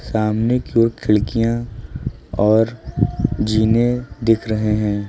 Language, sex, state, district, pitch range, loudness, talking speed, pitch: Hindi, male, Uttar Pradesh, Lucknow, 105-115 Hz, -18 LUFS, 105 wpm, 110 Hz